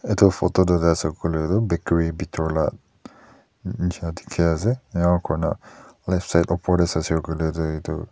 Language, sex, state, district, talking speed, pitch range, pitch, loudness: Nagamese, male, Nagaland, Dimapur, 175 wpm, 80-90 Hz, 85 Hz, -22 LUFS